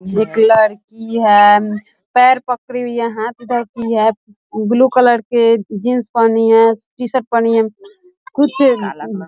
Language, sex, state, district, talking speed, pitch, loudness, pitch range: Hindi, female, Bihar, East Champaran, 150 wpm, 230 Hz, -14 LUFS, 215-250 Hz